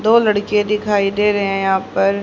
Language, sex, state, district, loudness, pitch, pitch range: Hindi, female, Haryana, Charkhi Dadri, -16 LUFS, 205 Hz, 195-210 Hz